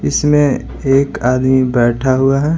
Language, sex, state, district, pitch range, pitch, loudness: Hindi, male, Bihar, Patna, 125-140 Hz, 130 Hz, -14 LUFS